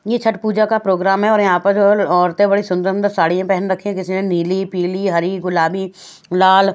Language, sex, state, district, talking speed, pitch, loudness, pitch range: Hindi, female, Haryana, Rohtak, 205 wpm, 190 Hz, -16 LUFS, 180-200 Hz